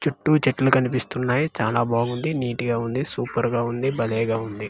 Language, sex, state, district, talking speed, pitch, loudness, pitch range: Telugu, male, Andhra Pradesh, Manyam, 165 wpm, 120 Hz, -23 LUFS, 115-130 Hz